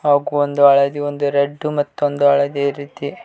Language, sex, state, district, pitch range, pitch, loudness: Kannada, male, Karnataka, Koppal, 140-145 Hz, 145 Hz, -17 LUFS